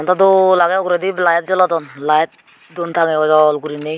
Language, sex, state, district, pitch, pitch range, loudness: Chakma, female, Tripura, Unakoti, 170 Hz, 155-185 Hz, -14 LUFS